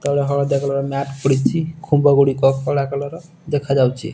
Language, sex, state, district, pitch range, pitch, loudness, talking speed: Odia, male, Odisha, Nuapada, 135-145 Hz, 140 Hz, -18 LUFS, 130 wpm